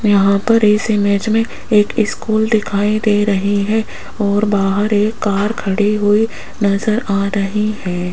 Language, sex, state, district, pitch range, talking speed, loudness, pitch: Hindi, female, Rajasthan, Jaipur, 200-215 Hz, 155 wpm, -15 LUFS, 210 Hz